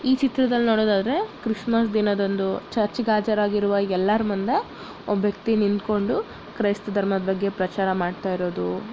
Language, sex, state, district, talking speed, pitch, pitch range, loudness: Kannada, female, Karnataka, Bellary, 120 wpm, 205 Hz, 195-225 Hz, -23 LUFS